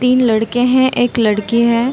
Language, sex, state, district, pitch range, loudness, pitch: Hindi, female, Chhattisgarh, Bilaspur, 230-250 Hz, -14 LUFS, 245 Hz